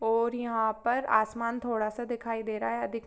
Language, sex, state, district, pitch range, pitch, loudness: Hindi, female, Jharkhand, Sahebganj, 220-235 Hz, 230 Hz, -30 LUFS